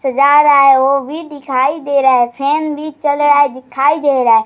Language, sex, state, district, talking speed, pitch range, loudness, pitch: Hindi, female, Bihar, Bhagalpur, 255 wpm, 265-295 Hz, -12 LUFS, 280 Hz